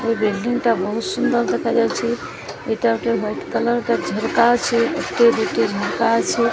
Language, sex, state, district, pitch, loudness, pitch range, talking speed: Odia, female, Odisha, Sambalpur, 235 Hz, -19 LUFS, 230-240 Hz, 145 wpm